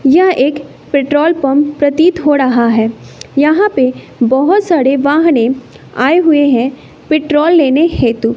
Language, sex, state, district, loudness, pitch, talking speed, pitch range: Hindi, female, Bihar, West Champaran, -11 LUFS, 285 Hz, 135 wpm, 260-315 Hz